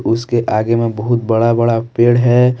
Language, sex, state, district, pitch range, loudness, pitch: Hindi, male, Jharkhand, Deoghar, 115-120 Hz, -14 LUFS, 115 Hz